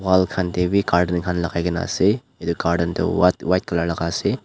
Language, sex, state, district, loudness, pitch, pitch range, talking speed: Nagamese, male, Nagaland, Dimapur, -21 LUFS, 90 Hz, 85-90 Hz, 200 wpm